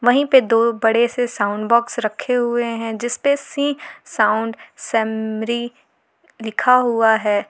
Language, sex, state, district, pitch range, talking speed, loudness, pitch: Hindi, female, Jharkhand, Garhwa, 220-245 Hz, 145 wpm, -18 LUFS, 235 Hz